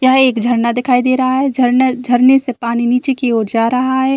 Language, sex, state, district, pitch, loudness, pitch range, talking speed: Hindi, female, Bihar, Saran, 250 Hz, -13 LUFS, 240-260 Hz, 245 wpm